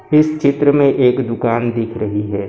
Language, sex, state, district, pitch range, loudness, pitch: Hindi, male, Maharashtra, Gondia, 115-140 Hz, -15 LUFS, 120 Hz